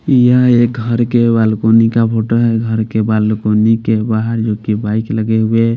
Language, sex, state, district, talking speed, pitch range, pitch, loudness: Hindi, male, Haryana, Rohtak, 165 wpm, 110-115 Hz, 115 Hz, -13 LUFS